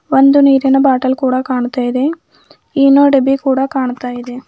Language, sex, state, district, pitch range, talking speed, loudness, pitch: Kannada, female, Karnataka, Bidar, 255-275 Hz, 145 wpm, -12 LUFS, 265 Hz